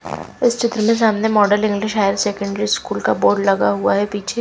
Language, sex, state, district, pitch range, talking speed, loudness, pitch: Hindi, female, Chhattisgarh, Raipur, 195-220 Hz, 205 wpm, -17 LUFS, 205 Hz